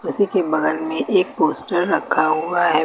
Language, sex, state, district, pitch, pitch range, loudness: Hindi, female, Uttar Pradesh, Lucknow, 160 Hz, 155-175 Hz, -19 LUFS